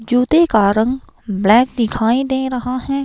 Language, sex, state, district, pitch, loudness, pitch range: Hindi, female, Himachal Pradesh, Shimla, 250 Hz, -15 LUFS, 220-265 Hz